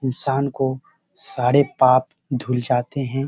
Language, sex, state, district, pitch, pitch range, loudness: Hindi, male, Bihar, Samastipur, 130 Hz, 130-140 Hz, -20 LUFS